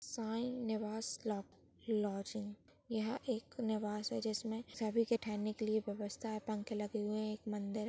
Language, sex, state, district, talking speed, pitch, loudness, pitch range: Hindi, male, Maharashtra, Dhule, 165 wpm, 215 Hz, -40 LUFS, 210-225 Hz